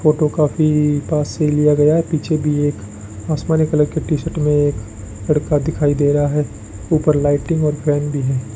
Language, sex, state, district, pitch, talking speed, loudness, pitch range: Hindi, male, Rajasthan, Bikaner, 150 Hz, 195 wpm, -17 LUFS, 145-155 Hz